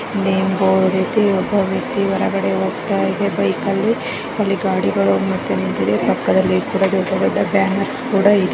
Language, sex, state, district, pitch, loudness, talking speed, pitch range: Kannada, female, Karnataka, Chamarajanagar, 195 Hz, -17 LUFS, 135 wpm, 185-200 Hz